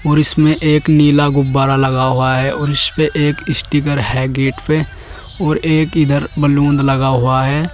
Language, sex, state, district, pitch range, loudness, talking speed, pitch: Hindi, male, Uttar Pradesh, Saharanpur, 135-155 Hz, -14 LUFS, 170 wpm, 145 Hz